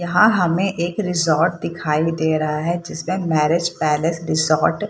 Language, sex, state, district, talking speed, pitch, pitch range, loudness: Hindi, female, Bihar, Saharsa, 160 wpm, 165 Hz, 155-175 Hz, -19 LUFS